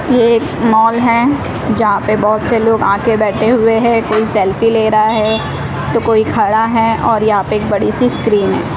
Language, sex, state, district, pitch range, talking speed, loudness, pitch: Hindi, female, Odisha, Malkangiri, 215-230 Hz, 205 wpm, -12 LUFS, 220 Hz